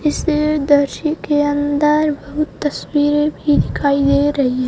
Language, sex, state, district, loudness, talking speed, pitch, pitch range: Hindi, female, Rajasthan, Jaisalmer, -16 LUFS, 130 wpm, 290 Hz, 285-300 Hz